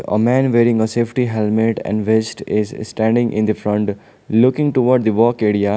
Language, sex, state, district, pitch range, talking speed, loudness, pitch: English, male, Sikkim, Gangtok, 105-120 Hz, 185 wpm, -17 LUFS, 110 Hz